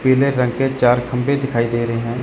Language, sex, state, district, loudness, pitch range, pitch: Hindi, male, Chandigarh, Chandigarh, -18 LUFS, 120-135 Hz, 125 Hz